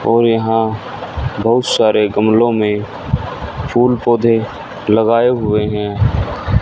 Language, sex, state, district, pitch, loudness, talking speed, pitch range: Hindi, male, Haryana, Rohtak, 110 Hz, -15 LUFS, 90 wpm, 105-120 Hz